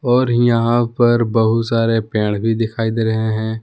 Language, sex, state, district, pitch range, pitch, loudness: Hindi, male, Jharkhand, Palamu, 110-120 Hz, 115 Hz, -16 LUFS